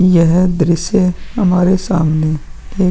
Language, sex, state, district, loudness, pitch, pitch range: Hindi, male, Bihar, Vaishali, -14 LUFS, 180 Hz, 165-185 Hz